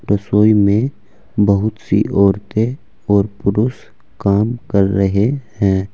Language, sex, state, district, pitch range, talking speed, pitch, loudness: Hindi, male, Uttar Pradesh, Saharanpur, 100-110 Hz, 110 wpm, 100 Hz, -16 LUFS